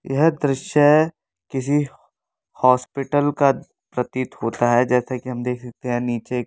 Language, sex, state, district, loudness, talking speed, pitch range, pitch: Hindi, male, Delhi, New Delhi, -21 LUFS, 140 wpm, 125-145 Hz, 130 Hz